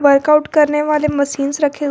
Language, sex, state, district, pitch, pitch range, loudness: Hindi, female, Jharkhand, Garhwa, 295 Hz, 280-300 Hz, -15 LUFS